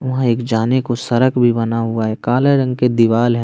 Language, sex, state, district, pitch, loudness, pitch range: Hindi, male, Bihar, West Champaran, 120 Hz, -16 LUFS, 115-125 Hz